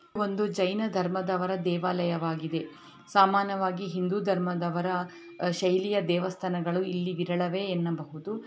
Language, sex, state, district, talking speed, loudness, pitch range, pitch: Kannada, female, Karnataka, Belgaum, 85 wpm, -29 LUFS, 175-190 Hz, 180 Hz